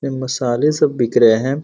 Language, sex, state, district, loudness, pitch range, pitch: Hindi, male, Bihar, Purnia, -16 LUFS, 120-140 Hz, 130 Hz